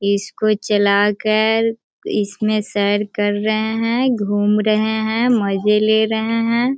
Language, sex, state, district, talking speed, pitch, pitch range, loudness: Hindi, female, Bihar, Sitamarhi, 125 wpm, 215 Hz, 205-220 Hz, -17 LUFS